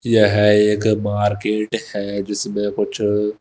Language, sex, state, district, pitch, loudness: Hindi, male, Himachal Pradesh, Shimla, 105 Hz, -18 LUFS